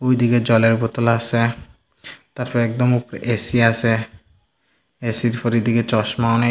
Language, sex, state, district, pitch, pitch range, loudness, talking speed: Bengali, male, Tripura, Dhalai, 115 Hz, 115-120 Hz, -19 LUFS, 150 wpm